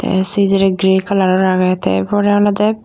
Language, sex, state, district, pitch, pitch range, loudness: Chakma, female, Tripura, Dhalai, 190 Hz, 185-205 Hz, -14 LUFS